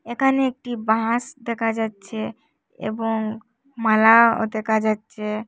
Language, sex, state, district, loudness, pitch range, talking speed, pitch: Bengali, female, Assam, Hailakandi, -21 LUFS, 220-240 Hz, 100 wpm, 225 Hz